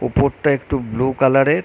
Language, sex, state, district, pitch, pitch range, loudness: Bengali, male, West Bengal, North 24 Parganas, 135 Hz, 135-140 Hz, -18 LUFS